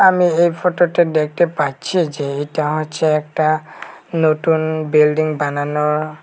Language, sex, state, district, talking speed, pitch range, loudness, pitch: Bengali, male, Tripura, West Tripura, 125 wpm, 150-170 Hz, -17 LUFS, 155 Hz